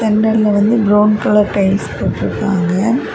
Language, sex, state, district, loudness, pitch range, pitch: Tamil, female, Tamil Nadu, Kanyakumari, -14 LUFS, 200-220 Hz, 210 Hz